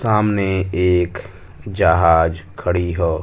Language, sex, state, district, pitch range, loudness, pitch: Hindi, male, Uttar Pradesh, Varanasi, 85-95 Hz, -17 LUFS, 90 Hz